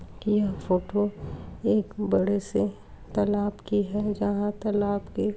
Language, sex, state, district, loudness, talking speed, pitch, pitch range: Hindi, female, Uttar Pradesh, Budaun, -27 LUFS, 135 wpm, 205 Hz, 205-210 Hz